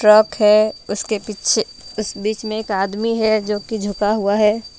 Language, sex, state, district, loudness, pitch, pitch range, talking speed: Hindi, female, Jharkhand, Deoghar, -18 LUFS, 215 Hz, 210-215 Hz, 175 wpm